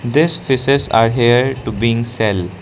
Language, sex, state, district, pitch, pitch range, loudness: English, male, Arunachal Pradesh, Lower Dibang Valley, 120 Hz, 115-135 Hz, -14 LUFS